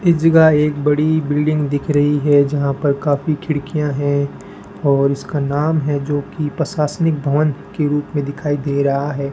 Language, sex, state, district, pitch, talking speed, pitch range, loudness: Hindi, male, Rajasthan, Bikaner, 145 Hz, 175 wpm, 140-150 Hz, -17 LUFS